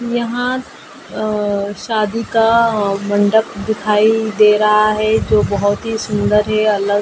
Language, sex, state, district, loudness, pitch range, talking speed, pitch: Hindi, female, Maharashtra, Mumbai Suburban, -15 LUFS, 205-220 Hz, 155 wpm, 215 Hz